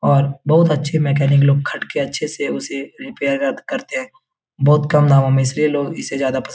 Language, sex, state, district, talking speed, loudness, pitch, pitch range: Hindi, male, Bihar, Jahanabad, 200 wpm, -17 LUFS, 145 Hz, 140-200 Hz